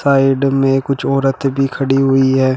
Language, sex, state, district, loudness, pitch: Hindi, male, Uttar Pradesh, Shamli, -14 LUFS, 135 Hz